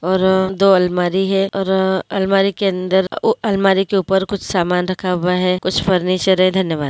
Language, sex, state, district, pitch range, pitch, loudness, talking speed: Hindi, female, Uttarakhand, Uttarkashi, 185-195 Hz, 190 Hz, -16 LUFS, 175 wpm